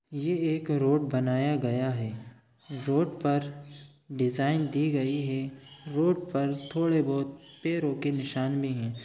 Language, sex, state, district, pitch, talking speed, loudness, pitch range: Hindi, male, Chhattisgarh, Sukma, 140 Hz, 145 wpm, -29 LUFS, 135-150 Hz